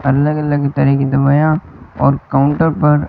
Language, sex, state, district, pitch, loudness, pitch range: Hindi, male, Rajasthan, Bikaner, 145 Hz, -14 LUFS, 140-150 Hz